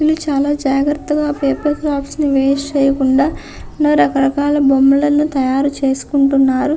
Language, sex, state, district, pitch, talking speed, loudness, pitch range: Telugu, female, Andhra Pradesh, Visakhapatnam, 280 Hz, 125 wpm, -15 LUFS, 275-295 Hz